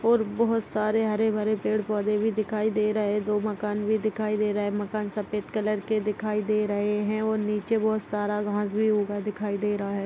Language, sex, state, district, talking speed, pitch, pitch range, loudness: Hindi, female, Maharashtra, Aurangabad, 215 wpm, 210 Hz, 210-215 Hz, -27 LUFS